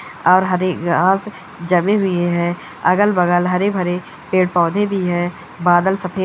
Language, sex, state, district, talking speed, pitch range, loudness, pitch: Hindi, female, Bihar, Gaya, 135 wpm, 175-190 Hz, -17 LUFS, 180 Hz